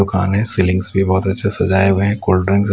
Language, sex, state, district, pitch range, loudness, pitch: Hindi, male, Bihar, West Champaran, 95-100 Hz, -16 LUFS, 95 Hz